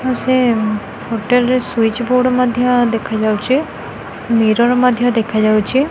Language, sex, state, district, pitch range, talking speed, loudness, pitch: Odia, female, Odisha, Khordha, 220-250 Hz, 130 wpm, -15 LUFS, 240 Hz